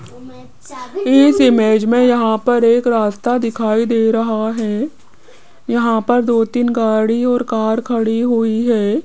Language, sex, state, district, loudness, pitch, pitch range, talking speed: Hindi, female, Rajasthan, Jaipur, -15 LUFS, 230 Hz, 220-245 Hz, 140 wpm